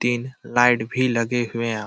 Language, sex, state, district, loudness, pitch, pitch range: Hindi, male, Jharkhand, Sahebganj, -21 LUFS, 120 Hz, 115-125 Hz